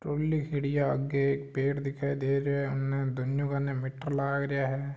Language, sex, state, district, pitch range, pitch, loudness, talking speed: Marwari, male, Rajasthan, Nagaur, 135-140 Hz, 140 Hz, -30 LUFS, 195 wpm